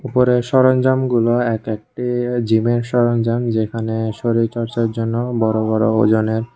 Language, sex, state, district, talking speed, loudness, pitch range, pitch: Bengali, male, Tripura, West Tripura, 120 wpm, -17 LUFS, 110-120 Hz, 115 Hz